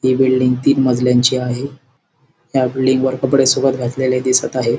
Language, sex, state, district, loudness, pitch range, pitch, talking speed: Marathi, male, Maharashtra, Sindhudurg, -15 LUFS, 125-135 Hz, 130 Hz, 165 wpm